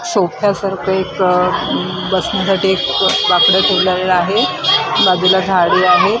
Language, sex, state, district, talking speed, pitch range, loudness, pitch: Marathi, female, Maharashtra, Mumbai Suburban, 95 wpm, 180-195 Hz, -13 LUFS, 190 Hz